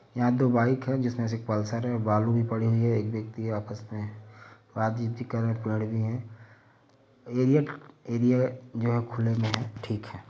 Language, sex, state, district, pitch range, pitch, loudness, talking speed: Hindi, male, Uttar Pradesh, Varanasi, 110-125 Hz, 115 Hz, -28 LUFS, 170 wpm